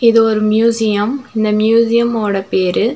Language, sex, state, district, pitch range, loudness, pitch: Tamil, female, Tamil Nadu, Nilgiris, 210-230 Hz, -14 LUFS, 220 Hz